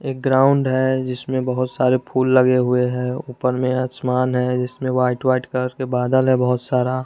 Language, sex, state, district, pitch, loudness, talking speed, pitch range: Hindi, male, Chandigarh, Chandigarh, 130 Hz, -19 LUFS, 195 wpm, 125-130 Hz